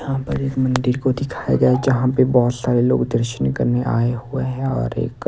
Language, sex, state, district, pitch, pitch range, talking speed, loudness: Hindi, male, Odisha, Nuapada, 125 Hz, 120-130 Hz, 225 wpm, -19 LUFS